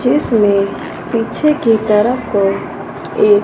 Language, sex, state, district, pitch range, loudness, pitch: Hindi, female, Punjab, Fazilka, 205-270 Hz, -14 LUFS, 225 Hz